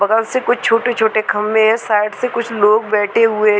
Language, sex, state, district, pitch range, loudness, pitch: Hindi, female, Chhattisgarh, Bilaspur, 210-230 Hz, -15 LUFS, 220 Hz